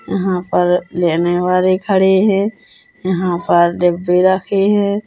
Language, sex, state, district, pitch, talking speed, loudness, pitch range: Hindi, female, Chhattisgarh, Korba, 185 Hz, 130 wpm, -15 LUFS, 175-195 Hz